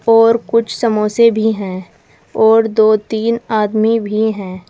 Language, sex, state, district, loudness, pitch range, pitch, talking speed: Hindi, female, Uttar Pradesh, Saharanpur, -14 LUFS, 210-230 Hz, 220 Hz, 140 wpm